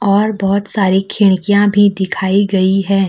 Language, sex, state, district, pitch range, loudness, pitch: Hindi, female, Jharkhand, Deoghar, 190-205 Hz, -13 LUFS, 195 Hz